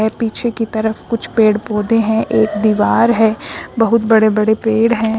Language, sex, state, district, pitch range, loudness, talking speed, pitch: Hindi, female, Uttar Pradesh, Shamli, 220-230 Hz, -15 LUFS, 185 wpm, 220 Hz